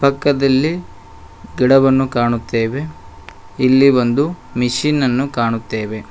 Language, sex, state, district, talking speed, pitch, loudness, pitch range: Kannada, male, Karnataka, Koppal, 80 wpm, 125 Hz, -16 LUFS, 110-140 Hz